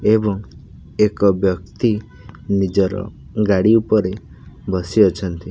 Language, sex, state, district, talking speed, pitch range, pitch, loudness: Odia, male, Odisha, Khordha, 85 wpm, 95-105 Hz, 100 Hz, -18 LUFS